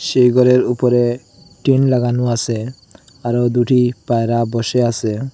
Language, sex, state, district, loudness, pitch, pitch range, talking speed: Bengali, male, Assam, Hailakandi, -16 LUFS, 120 Hz, 115-125 Hz, 125 wpm